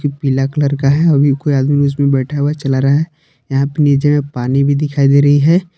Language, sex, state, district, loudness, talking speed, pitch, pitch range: Hindi, male, Jharkhand, Palamu, -13 LUFS, 230 wpm, 140 Hz, 140-145 Hz